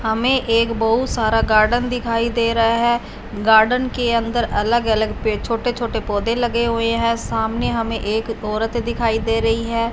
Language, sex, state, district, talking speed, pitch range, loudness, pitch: Hindi, female, Punjab, Fazilka, 175 wpm, 220-235 Hz, -19 LUFS, 230 Hz